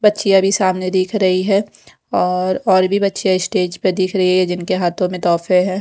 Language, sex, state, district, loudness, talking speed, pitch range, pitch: Hindi, female, Odisha, Khordha, -16 LUFS, 205 wpm, 180-195 Hz, 185 Hz